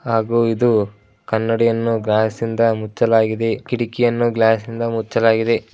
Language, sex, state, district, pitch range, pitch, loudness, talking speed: Kannada, male, Karnataka, Dharwad, 110-115 Hz, 115 Hz, -18 LUFS, 115 wpm